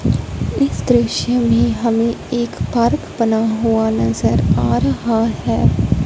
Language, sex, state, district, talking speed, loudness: Hindi, female, Punjab, Fazilka, 120 wpm, -17 LUFS